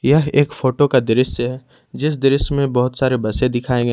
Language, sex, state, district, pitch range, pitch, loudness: Hindi, male, Jharkhand, Ranchi, 125-140 Hz, 130 Hz, -17 LUFS